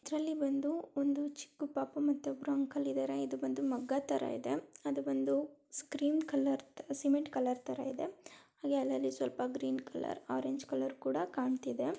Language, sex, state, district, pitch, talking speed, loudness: Kannada, female, Karnataka, Dakshina Kannada, 275 Hz, 155 wpm, -37 LUFS